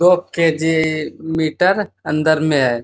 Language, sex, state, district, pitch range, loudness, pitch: Hindi, male, Bihar, Bhagalpur, 155-170 Hz, -17 LUFS, 160 Hz